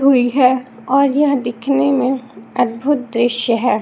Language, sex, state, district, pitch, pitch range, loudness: Hindi, female, Chhattisgarh, Raipur, 255 Hz, 240-275 Hz, -16 LUFS